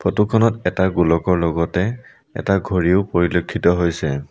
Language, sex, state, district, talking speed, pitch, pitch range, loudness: Assamese, male, Assam, Sonitpur, 125 wpm, 90 Hz, 85-105 Hz, -18 LUFS